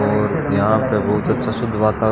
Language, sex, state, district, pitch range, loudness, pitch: Hindi, male, Rajasthan, Bikaner, 105-110 Hz, -18 LUFS, 110 Hz